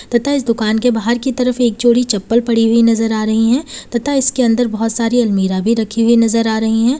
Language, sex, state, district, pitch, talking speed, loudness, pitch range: Hindi, female, Uttar Pradesh, Lalitpur, 230 Hz, 250 wpm, -14 LUFS, 225-245 Hz